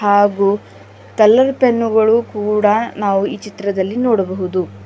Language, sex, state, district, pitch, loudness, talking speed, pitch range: Kannada, female, Karnataka, Bidar, 210 Hz, -15 LUFS, 110 wpm, 200-225 Hz